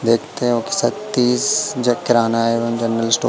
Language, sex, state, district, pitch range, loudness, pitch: Hindi, male, Madhya Pradesh, Katni, 115-125 Hz, -18 LUFS, 115 Hz